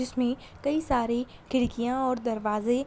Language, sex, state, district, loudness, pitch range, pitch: Hindi, female, Jharkhand, Sahebganj, -28 LUFS, 240-255 Hz, 250 Hz